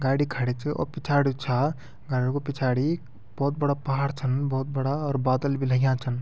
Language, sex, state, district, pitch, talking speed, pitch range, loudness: Garhwali, male, Uttarakhand, Tehri Garhwal, 135 Hz, 200 wpm, 130-145 Hz, -26 LUFS